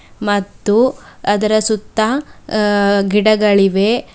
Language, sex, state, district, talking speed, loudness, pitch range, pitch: Kannada, female, Karnataka, Bidar, 70 wpm, -15 LUFS, 205-220 Hz, 210 Hz